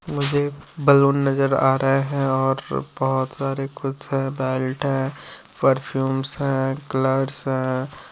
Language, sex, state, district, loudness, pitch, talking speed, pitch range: Hindi, male, Bihar, Jamui, -22 LUFS, 135 Hz, 120 wpm, 135-140 Hz